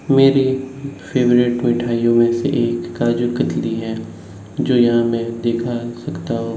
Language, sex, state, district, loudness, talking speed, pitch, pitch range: Hindi, male, Bihar, Patna, -18 LUFS, 135 wpm, 120 Hz, 115-120 Hz